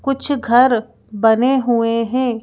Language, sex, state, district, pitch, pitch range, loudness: Hindi, female, Madhya Pradesh, Bhopal, 240 Hz, 230-260 Hz, -16 LUFS